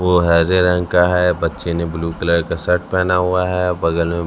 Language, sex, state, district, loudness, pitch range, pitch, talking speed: Hindi, male, Chhattisgarh, Raipur, -17 LUFS, 85-90 Hz, 90 Hz, 225 wpm